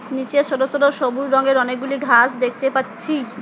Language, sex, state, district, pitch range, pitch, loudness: Bengali, female, West Bengal, Alipurduar, 255-275 Hz, 265 Hz, -18 LUFS